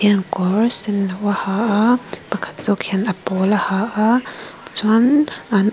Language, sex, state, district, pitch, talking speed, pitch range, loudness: Mizo, female, Mizoram, Aizawl, 205 Hz, 145 wpm, 200-225 Hz, -18 LUFS